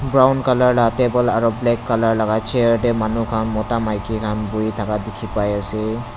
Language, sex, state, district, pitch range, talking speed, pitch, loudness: Nagamese, male, Nagaland, Dimapur, 110-120 Hz, 175 wpm, 115 Hz, -18 LUFS